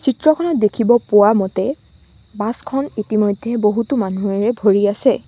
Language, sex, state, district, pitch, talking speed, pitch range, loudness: Assamese, female, Assam, Sonitpur, 220 Hz, 125 wpm, 205-260 Hz, -17 LUFS